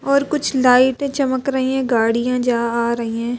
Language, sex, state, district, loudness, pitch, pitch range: Hindi, female, Madhya Pradesh, Bhopal, -18 LUFS, 250 Hz, 235-270 Hz